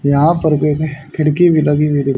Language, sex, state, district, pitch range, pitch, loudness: Hindi, male, Haryana, Jhajjar, 145-155 Hz, 150 Hz, -14 LUFS